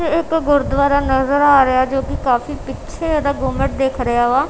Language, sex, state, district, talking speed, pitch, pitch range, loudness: Punjabi, female, Punjab, Kapurthala, 200 wpm, 275 Hz, 265-290 Hz, -16 LUFS